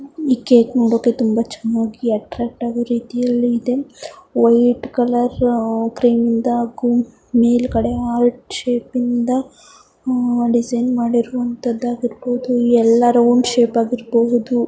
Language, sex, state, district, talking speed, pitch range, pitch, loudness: Kannada, female, Karnataka, Mysore, 100 wpm, 235-245 Hz, 240 Hz, -17 LUFS